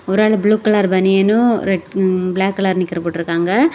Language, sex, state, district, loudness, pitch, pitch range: Tamil, female, Tamil Nadu, Kanyakumari, -16 LUFS, 195 Hz, 185-215 Hz